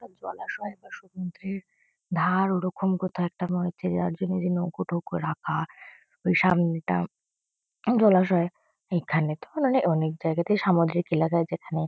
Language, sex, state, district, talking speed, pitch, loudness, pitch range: Bengali, female, West Bengal, Kolkata, 135 wpm, 180 Hz, -26 LUFS, 170-190 Hz